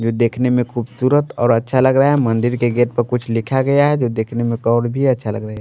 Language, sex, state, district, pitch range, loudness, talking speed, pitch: Hindi, male, Maharashtra, Washim, 115-130 Hz, -17 LUFS, 280 wpm, 120 Hz